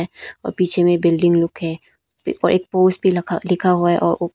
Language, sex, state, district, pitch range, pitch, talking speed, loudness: Hindi, female, Arunachal Pradesh, Papum Pare, 170-185 Hz, 175 Hz, 220 wpm, -17 LUFS